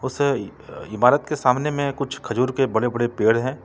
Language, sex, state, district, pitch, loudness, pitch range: Hindi, male, Jharkhand, Ranchi, 130 Hz, -21 LUFS, 120-140 Hz